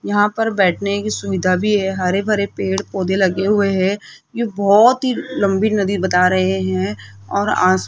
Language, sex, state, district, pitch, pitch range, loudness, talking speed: Hindi, female, Rajasthan, Jaipur, 195 Hz, 185-205 Hz, -17 LUFS, 185 wpm